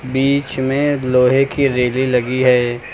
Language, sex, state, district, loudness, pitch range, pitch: Hindi, male, Uttar Pradesh, Lucknow, -16 LUFS, 125-135 Hz, 130 Hz